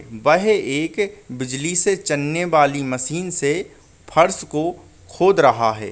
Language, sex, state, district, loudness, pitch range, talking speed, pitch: Hindi, male, Uttar Pradesh, Muzaffarnagar, -19 LUFS, 135-175 Hz, 130 wpm, 150 Hz